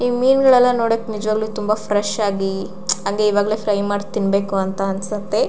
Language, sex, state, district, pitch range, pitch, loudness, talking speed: Kannada, female, Karnataka, Shimoga, 195-215 Hz, 205 Hz, -19 LUFS, 155 wpm